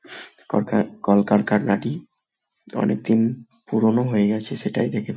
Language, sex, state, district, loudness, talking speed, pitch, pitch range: Bengali, male, West Bengal, Malda, -21 LUFS, 115 wpm, 110 Hz, 105-115 Hz